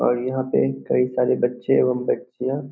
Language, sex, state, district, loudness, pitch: Hindi, male, Bihar, Samastipur, -22 LUFS, 125 Hz